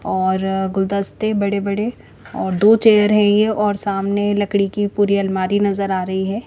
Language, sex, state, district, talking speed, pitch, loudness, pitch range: Hindi, female, Chandigarh, Chandigarh, 185 wpm, 200 Hz, -17 LUFS, 195-210 Hz